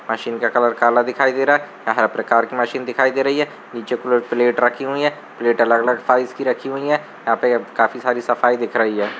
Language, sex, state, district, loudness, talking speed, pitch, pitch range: Hindi, male, Uttar Pradesh, Varanasi, -18 LUFS, 250 wpm, 120 Hz, 115-135 Hz